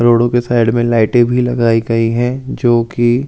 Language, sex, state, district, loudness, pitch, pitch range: Hindi, male, Delhi, New Delhi, -13 LUFS, 120 Hz, 115-120 Hz